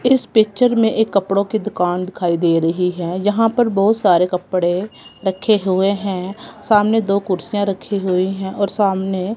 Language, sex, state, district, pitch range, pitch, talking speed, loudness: Hindi, female, Punjab, Kapurthala, 185-215 Hz, 195 Hz, 175 wpm, -17 LUFS